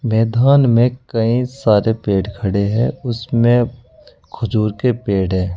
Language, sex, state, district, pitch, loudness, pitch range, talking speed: Hindi, male, Uttar Pradesh, Saharanpur, 115 Hz, -16 LUFS, 105-120 Hz, 130 wpm